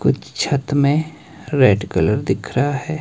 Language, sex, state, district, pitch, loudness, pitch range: Hindi, male, Himachal Pradesh, Shimla, 140 Hz, -18 LUFS, 130-150 Hz